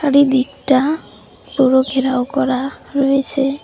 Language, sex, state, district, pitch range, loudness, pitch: Bengali, female, West Bengal, Cooch Behar, 260-280 Hz, -16 LUFS, 270 Hz